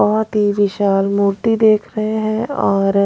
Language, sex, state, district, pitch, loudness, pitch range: Hindi, female, Punjab, Pathankot, 205 Hz, -16 LUFS, 200-215 Hz